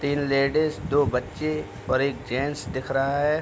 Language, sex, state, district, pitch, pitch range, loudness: Hindi, male, Uttar Pradesh, Deoria, 140 Hz, 130-145 Hz, -25 LUFS